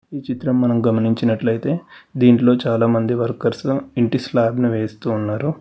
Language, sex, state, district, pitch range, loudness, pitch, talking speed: Telugu, male, Telangana, Hyderabad, 115-130 Hz, -18 LUFS, 120 Hz, 140 wpm